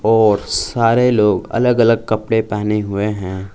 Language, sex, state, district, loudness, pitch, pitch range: Hindi, male, Jharkhand, Palamu, -16 LUFS, 110 Hz, 105-115 Hz